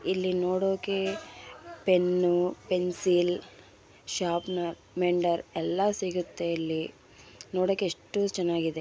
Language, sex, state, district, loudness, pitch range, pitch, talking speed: Kannada, female, Karnataka, Bellary, -29 LUFS, 165-185 Hz, 180 Hz, 80 wpm